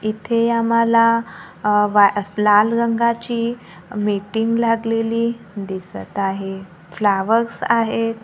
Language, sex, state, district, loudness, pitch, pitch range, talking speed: Marathi, female, Maharashtra, Gondia, -18 LUFS, 225 Hz, 200-230 Hz, 75 wpm